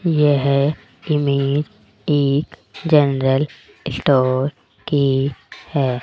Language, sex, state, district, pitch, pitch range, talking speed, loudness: Hindi, female, Rajasthan, Jaipur, 140 Hz, 135-150 Hz, 70 wpm, -18 LUFS